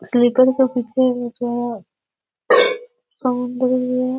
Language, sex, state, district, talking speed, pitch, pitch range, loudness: Hindi, female, Chhattisgarh, Korba, 115 wpm, 255 Hz, 245-260 Hz, -18 LUFS